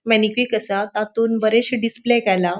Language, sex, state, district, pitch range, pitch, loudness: Konkani, female, Goa, North and South Goa, 210-235 Hz, 225 Hz, -19 LUFS